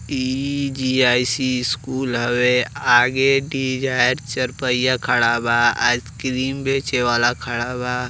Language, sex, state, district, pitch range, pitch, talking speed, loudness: Bhojpuri, male, Uttar Pradesh, Deoria, 120-130 Hz, 125 Hz, 110 wpm, -19 LUFS